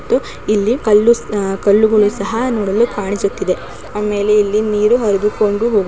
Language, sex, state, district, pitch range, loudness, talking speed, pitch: Kannada, female, Karnataka, Shimoga, 200-215 Hz, -15 LUFS, 120 wpm, 210 Hz